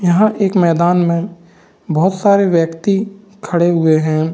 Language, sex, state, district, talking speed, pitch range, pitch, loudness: Hindi, male, Bihar, Saran, 140 wpm, 170-200 Hz, 175 Hz, -14 LUFS